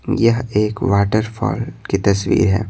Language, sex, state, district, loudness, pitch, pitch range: Hindi, male, Bihar, Patna, -18 LUFS, 105 Hz, 100-115 Hz